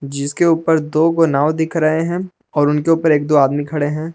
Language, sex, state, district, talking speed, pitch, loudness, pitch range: Hindi, male, Jharkhand, Palamu, 230 wpm, 155 Hz, -16 LUFS, 145-165 Hz